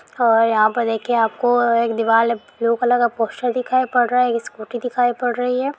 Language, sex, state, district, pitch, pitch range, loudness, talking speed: Hindi, female, Andhra Pradesh, Guntur, 240 Hz, 230-245 Hz, -18 LUFS, 220 wpm